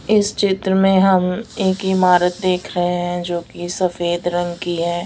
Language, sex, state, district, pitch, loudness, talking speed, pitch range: Hindi, female, Odisha, Sambalpur, 180 Hz, -18 LUFS, 180 wpm, 175-190 Hz